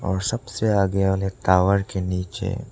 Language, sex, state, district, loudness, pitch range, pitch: Hindi, male, Arunachal Pradesh, Lower Dibang Valley, -22 LUFS, 95-100 Hz, 95 Hz